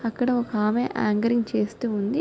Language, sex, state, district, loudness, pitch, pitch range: Telugu, female, Telangana, Nalgonda, -24 LUFS, 230 Hz, 215-245 Hz